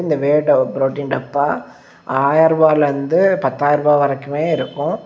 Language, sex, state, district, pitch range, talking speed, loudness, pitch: Tamil, male, Tamil Nadu, Kanyakumari, 140-155 Hz, 70 wpm, -16 LUFS, 145 Hz